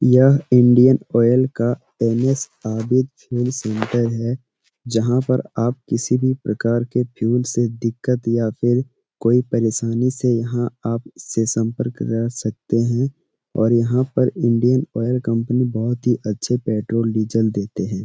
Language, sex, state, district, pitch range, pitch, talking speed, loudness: Hindi, male, Bihar, Araria, 115-125 Hz, 120 Hz, 140 wpm, -19 LUFS